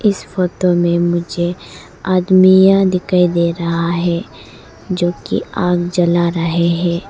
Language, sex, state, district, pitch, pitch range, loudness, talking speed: Hindi, female, Arunachal Pradesh, Lower Dibang Valley, 175 Hz, 170-185 Hz, -15 LUFS, 120 wpm